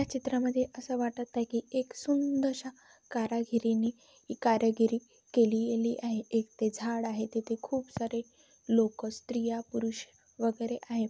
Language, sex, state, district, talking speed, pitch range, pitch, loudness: Marathi, female, Maharashtra, Chandrapur, 140 wpm, 230-255 Hz, 235 Hz, -32 LUFS